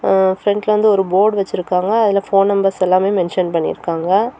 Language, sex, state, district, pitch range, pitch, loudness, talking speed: Tamil, female, Tamil Nadu, Kanyakumari, 185-205 Hz, 195 Hz, -15 LUFS, 175 wpm